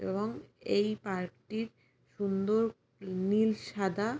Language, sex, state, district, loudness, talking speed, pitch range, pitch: Bengali, female, West Bengal, Jalpaiguri, -33 LUFS, 100 wpm, 195-220 Hz, 210 Hz